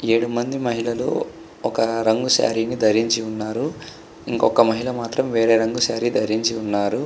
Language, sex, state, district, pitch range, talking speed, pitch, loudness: Telugu, male, Andhra Pradesh, Chittoor, 110-120 Hz, 145 wpm, 115 Hz, -20 LUFS